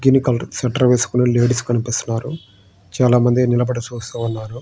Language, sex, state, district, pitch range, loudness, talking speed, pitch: Telugu, male, Andhra Pradesh, Srikakulam, 115-125 Hz, -18 LUFS, 145 wpm, 120 Hz